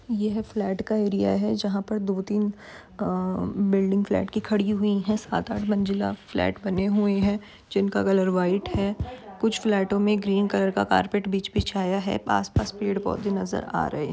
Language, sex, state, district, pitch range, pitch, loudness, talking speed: Hindi, female, Uttar Pradesh, Varanasi, 190-210 Hz, 200 Hz, -25 LUFS, 195 wpm